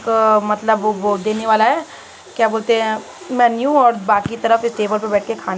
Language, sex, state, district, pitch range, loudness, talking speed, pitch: Hindi, female, Uttar Pradesh, Muzaffarnagar, 215-230 Hz, -16 LUFS, 215 wpm, 220 Hz